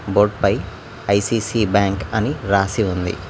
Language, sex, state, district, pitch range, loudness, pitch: Telugu, male, Telangana, Mahabubabad, 95-110 Hz, -19 LUFS, 100 Hz